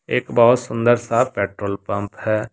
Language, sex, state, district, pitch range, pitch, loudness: Hindi, male, Jharkhand, Deoghar, 100-120 Hz, 110 Hz, -19 LUFS